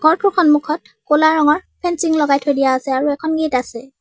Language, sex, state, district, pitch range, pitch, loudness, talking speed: Assamese, female, Assam, Sonitpur, 275-320 Hz, 300 Hz, -16 LUFS, 195 wpm